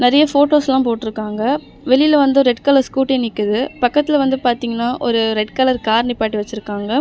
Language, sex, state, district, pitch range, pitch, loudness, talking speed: Tamil, female, Tamil Nadu, Chennai, 225-275 Hz, 245 Hz, -16 LUFS, 155 wpm